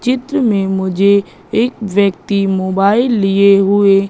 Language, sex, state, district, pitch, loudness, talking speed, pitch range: Hindi, female, Madhya Pradesh, Katni, 200 Hz, -13 LUFS, 115 wpm, 195-220 Hz